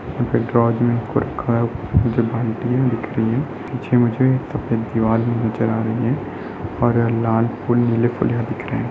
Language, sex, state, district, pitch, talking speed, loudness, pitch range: Hindi, male, Chhattisgarh, Sarguja, 120 Hz, 140 wpm, -20 LUFS, 115-120 Hz